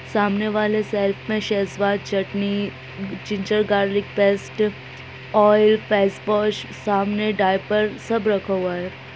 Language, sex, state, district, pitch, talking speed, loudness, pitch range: Hindi, female, Bihar, Gaya, 205 Hz, 120 wpm, -21 LUFS, 200-210 Hz